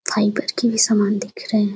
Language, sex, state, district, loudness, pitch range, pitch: Hindi, female, Uttar Pradesh, Deoria, -19 LUFS, 210-220 Hz, 215 Hz